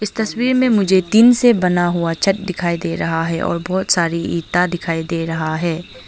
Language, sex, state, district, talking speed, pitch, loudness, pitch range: Hindi, female, Arunachal Pradesh, Longding, 195 wpm, 175 Hz, -17 LUFS, 165-200 Hz